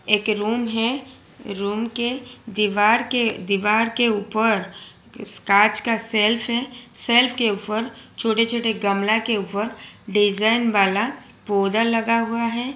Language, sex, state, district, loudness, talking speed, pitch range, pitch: Hindi, female, Gujarat, Valsad, -20 LUFS, 130 wpm, 210-235 Hz, 225 Hz